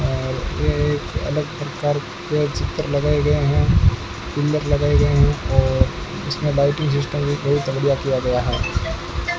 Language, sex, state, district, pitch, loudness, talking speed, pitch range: Hindi, male, Rajasthan, Bikaner, 140 Hz, -20 LUFS, 115 wpm, 105-145 Hz